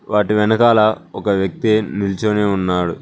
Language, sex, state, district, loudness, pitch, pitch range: Telugu, male, Telangana, Mahabubabad, -16 LUFS, 105 Hz, 95-110 Hz